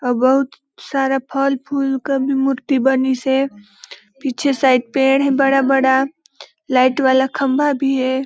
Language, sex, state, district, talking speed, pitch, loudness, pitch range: Hindi, female, Chhattisgarh, Balrampur, 130 wpm, 270 Hz, -17 LUFS, 260-275 Hz